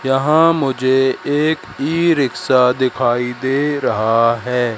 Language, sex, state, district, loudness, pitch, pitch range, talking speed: Hindi, male, Madhya Pradesh, Katni, -16 LUFS, 130 Hz, 125-145 Hz, 115 wpm